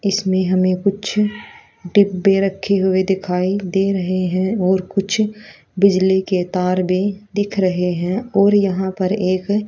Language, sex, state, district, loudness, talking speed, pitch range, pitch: Hindi, female, Haryana, Rohtak, -18 LUFS, 140 wpm, 185-200 Hz, 190 Hz